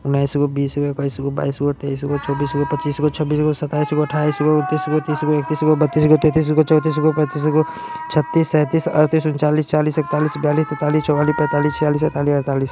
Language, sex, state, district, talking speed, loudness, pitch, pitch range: Bajjika, male, Bihar, Vaishali, 145 wpm, -18 LUFS, 150 Hz, 145-155 Hz